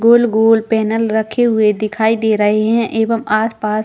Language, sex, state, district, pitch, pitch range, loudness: Hindi, female, Chhattisgarh, Balrampur, 220 Hz, 215-225 Hz, -14 LUFS